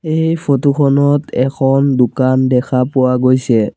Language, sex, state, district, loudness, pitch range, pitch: Assamese, male, Assam, Sonitpur, -13 LUFS, 130-140 Hz, 130 Hz